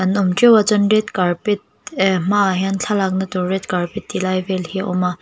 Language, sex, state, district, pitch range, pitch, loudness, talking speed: Mizo, female, Mizoram, Aizawl, 185-205 Hz, 190 Hz, -18 LUFS, 240 wpm